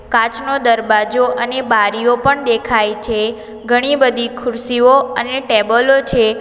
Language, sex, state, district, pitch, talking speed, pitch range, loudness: Gujarati, female, Gujarat, Valsad, 240 Hz, 120 wpm, 225-255 Hz, -14 LUFS